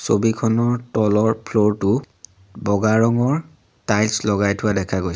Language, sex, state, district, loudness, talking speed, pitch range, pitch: Assamese, male, Assam, Sonitpur, -19 LUFS, 130 wpm, 100-115 Hz, 105 Hz